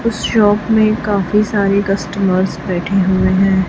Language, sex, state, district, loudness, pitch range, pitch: Hindi, female, Chhattisgarh, Raipur, -14 LUFS, 190-210 Hz, 200 Hz